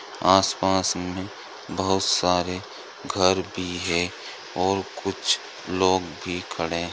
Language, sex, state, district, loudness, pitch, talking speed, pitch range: Hindi, male, Andhra Pradesh, Chittoor, -24 LUFS, 90 Hz, 120 wpm, 90-95 Hz